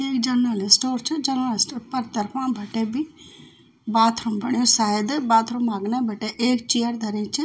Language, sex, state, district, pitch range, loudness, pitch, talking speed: Garhwali, female, Uttarakhand, Tehri Garhwal, 220-255 Hz, -22 LUFS, 240 Hz, 170 wpm